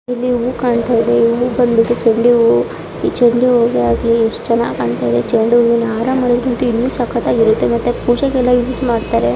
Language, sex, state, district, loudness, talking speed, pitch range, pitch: Kannada, female, Karnataka, Dharwad, -14 LUFS, 180 wpm, 230-245 Hz, 235 Hz